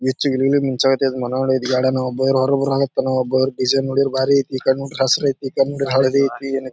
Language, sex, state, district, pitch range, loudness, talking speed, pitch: Kannada, male, Karnataka, Bijapur, 130-135 Hz, -18 LUFS, 185 wpm, 135 Hz